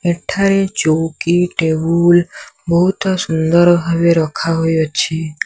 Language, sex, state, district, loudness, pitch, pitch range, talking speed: Odia, male, Odisha, Sambalpur, -14 LUFS, 170 Hz, 160-175 Hz, 75 wpm